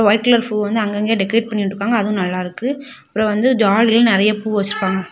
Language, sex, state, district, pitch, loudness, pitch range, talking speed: Tamil, female, Tamil Nadu, Kanyakumari, 215 Hz, -17 LUFS, 200-230 Hz, 175 wpm